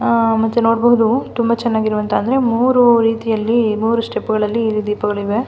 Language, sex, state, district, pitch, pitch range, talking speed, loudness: Kannada, female, Karnataka, Mysore, 225 Hz, 215-235 Hz, 140 wpm, -16 LUFS